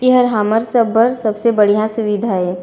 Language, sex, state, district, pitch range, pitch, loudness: Chhattisgarhi, female, Chhattisgarh, Raigarh, 210-235 Hz, 220 Hz, -15 LUFS